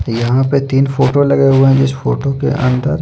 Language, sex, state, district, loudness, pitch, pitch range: Hindi, male, Chandigarh, Chandigarh, -13 LUFS, 135 Hz, 130-140 Hz